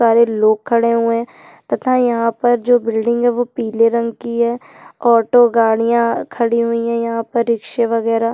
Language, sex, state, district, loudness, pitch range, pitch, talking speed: Hindi, female, Chhattisgarh, Jashpur, -16 LUFS, 230-240 Hz, 235 Hz, 180 wpm